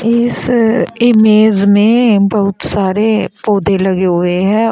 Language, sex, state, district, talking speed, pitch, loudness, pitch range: Hindi, female, Uttar Pradesh, Shamli, 115 wpm, 210 Hz, -11 LUFS, 195-225 Hz